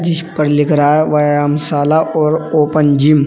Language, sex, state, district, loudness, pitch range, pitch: Hindi, male, Uttar Pradesh, Saharanpur, -13 LUFS, 145-155 Hz, 150 Hz